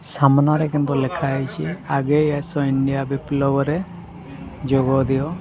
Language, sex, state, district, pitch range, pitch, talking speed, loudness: Odia, male, Odisha, Sambalpur, 135-150 Hz, 140 Hz, 100 wpm, -20 LUFS